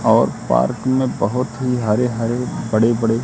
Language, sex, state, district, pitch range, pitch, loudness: Hindi, male, Madhya Pradesh, Katni, 115-125 Hz, 120 Hz, -18 LUFS